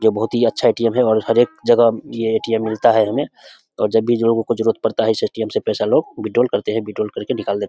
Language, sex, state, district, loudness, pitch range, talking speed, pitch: Hindi, male, Bihar, Samastipur, -18 LUFS, 110-120 Hz, 275 wpm, 115 Hz